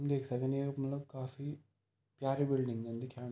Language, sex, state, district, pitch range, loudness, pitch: Garhwali, male, Uttarakhand, Tehri Garhwal, 125-140 Hz, -38 LUFS, 135 Hz